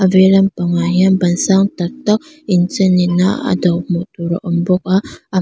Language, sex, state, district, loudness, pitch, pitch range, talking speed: Mizo, female, Mizoram, Aizawl, -15 LUFS, 185 Hz, 175-195 Hz, 245 wpm